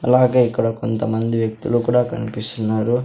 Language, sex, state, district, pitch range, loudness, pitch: Telugu, male, Andhra Pradesh, Sri Satya Sai, 110-125 Hz, -19 LUFS, 115 Hz